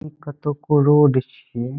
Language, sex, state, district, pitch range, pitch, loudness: Maithili, male, Bihar, Saharsa, 135-150 Hz, 145 Hz, -19 LUFS